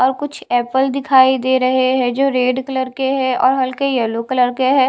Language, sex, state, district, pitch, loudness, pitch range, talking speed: Hindi, female, Odisha, Khordha, 260 Hz, -16 LUFS, 255-265 Hz, 220 wpm